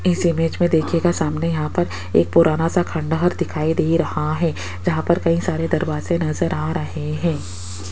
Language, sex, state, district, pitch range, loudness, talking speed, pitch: Hindi, female, Rajasthan, Jaipur, 150-170 Hz, -20 LUFS, 180 wpm, 165 Hz